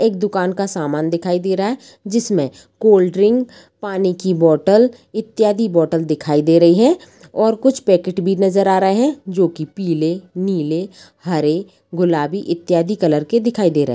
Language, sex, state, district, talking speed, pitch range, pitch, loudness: Hindi, female, Bihar, Saran, 165 wpm, 165-210 Hz, 190 Hz, -16 LUFS